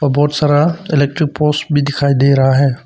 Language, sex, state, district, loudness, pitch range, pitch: Hindi, male, Arunachal Pradesh, Papum Pare, -13 LUFS, 140-150 Hz, 145 Hz